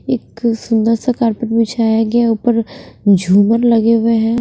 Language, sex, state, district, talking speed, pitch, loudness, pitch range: Hindi, female, Punjab, Pathankot, 150 wpm, 230 Hz, -14 LUFS, 225-235 Hz